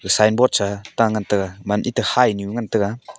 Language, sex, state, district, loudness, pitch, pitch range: Wancho, male, Arunachal Pradesh, Longding, -19 LUFS, 105 Hz, 100-110 Hz